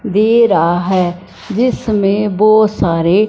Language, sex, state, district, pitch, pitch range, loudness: Hindi, male, Punjab, Fazilka, 205 Hz, 180-215 Hz, -13 LUFS